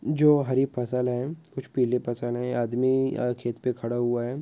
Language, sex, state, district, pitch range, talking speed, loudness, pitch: Hindi, male, West Bengal, Dakshin Dinajpur, 120-130 Hz, 215 wpm, -26 LUFS, 125 Hz